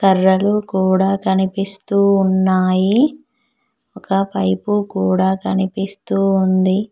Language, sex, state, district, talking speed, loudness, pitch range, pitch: Telugu, female, Telangana, Mahabubabad, 70 wpm, -16 LUFS, 190-205 Hz, 195 Hz